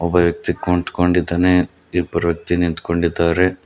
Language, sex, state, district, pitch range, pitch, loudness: Kannada, male, Karnataka, Koppal, 85-90 Hz, 85 Hz, -18 LUFS